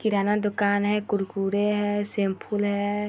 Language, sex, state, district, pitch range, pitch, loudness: Hindi, female, Bihar, Vaishali, 200-210 Hz, 205 Hz, -25 LUFS